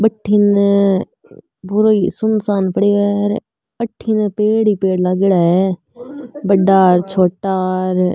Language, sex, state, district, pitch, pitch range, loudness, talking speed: Marwari, female, Rajasthan, Nagaur, 200 Hz, 190-215 Hz, -15 LUFS, 120 wpm